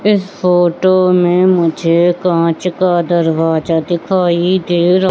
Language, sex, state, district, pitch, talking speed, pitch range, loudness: Hindi, female, Madhya Pradesh, Katni, 175 Hz, 115 wpm, 170-185 Hz, -13 LUFS